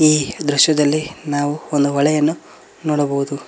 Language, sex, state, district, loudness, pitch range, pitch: Kannada, male, Karnataka, Koppal, -17 LUFS, 145-155 Hz, 150 Hz